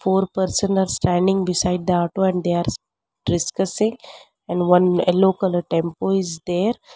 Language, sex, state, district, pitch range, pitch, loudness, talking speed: English, female, Karnataka, Bangalore, 175-190 Hz, 180 Hz, -20 LUFS, 155 wpm